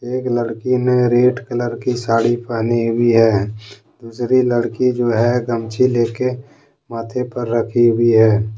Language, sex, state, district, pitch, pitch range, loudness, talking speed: Hindi, male, Jharkhand, Deoghar, 120 Hz, 115-125 Hz, -17 LUFS, 145 wpm